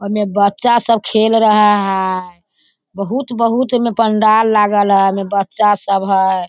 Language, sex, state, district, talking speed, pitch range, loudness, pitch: Hindi, female, Bihar, Sitamarhi, 140 wpm, 195-225 Hz, -14 LUFS, 205 Hz